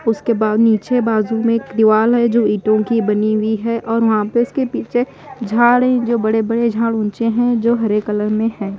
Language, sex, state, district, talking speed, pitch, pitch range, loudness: Hindi, female, Punjab, Fazilka, 220 wpm, 225 Hz, 215-235 Hz, -16 LUFS